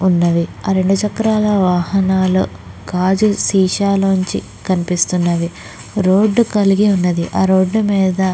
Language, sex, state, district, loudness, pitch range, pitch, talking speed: Telugu, female, Andhra Pradesh, Krishna, -15 LUFS, 185-200 Hz, 190 Hz, 110 wpm